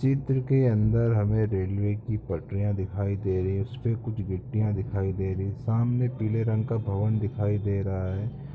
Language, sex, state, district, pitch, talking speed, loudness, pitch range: Hindi, male, Chhattisgarh, Sukma, 105 Hz, 195 wpm, -27 LUFS, 100-115 Hz